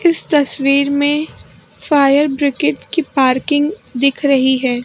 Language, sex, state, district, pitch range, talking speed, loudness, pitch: Hindi, male, Maharashtra, Mumbai Suburban, 265-295 Hz, 125 wpm, -15 LUFS, 280 Hz